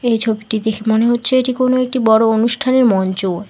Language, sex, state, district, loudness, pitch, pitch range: Bengali, female, West Bengal, Alipurduar, -15 LUFS, 225 Hz, 220-255 Hz